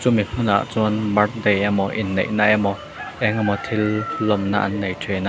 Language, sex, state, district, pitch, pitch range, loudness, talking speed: Mizo, male, Mizoram, Aizawl, 105 Hz, 100-110 Hz, -20 LUFS, 160 wpm